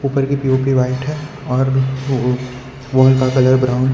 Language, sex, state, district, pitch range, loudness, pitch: Hindi, male, Gujarat, Valsad, 130-135 Hz, -16 LUFS, 130 Hz